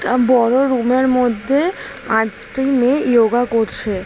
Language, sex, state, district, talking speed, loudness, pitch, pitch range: Bengali, female, West Bengal, Jalpaiguri, 120 wpm, -16 LUFS, 245 Hz, 230-260 Hz